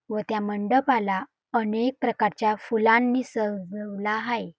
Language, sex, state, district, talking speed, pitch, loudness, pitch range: Marathi, female, Maharashtra, Dhule, 105 wpm, 220 Hz, -25 LUFS, 210-235 Hz